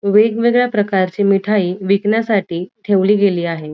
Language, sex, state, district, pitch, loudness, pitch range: Marathi, female, Maharashtra, Dhule, 200 Hz, -15 LUFS, 185-210 Hz